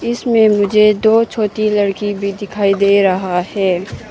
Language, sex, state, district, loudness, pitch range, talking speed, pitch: Hindi, female, Arunachal Pradesh, Papum Pare, -14 LUFS, 200-215 Hz, 145 wpm, 205 Hz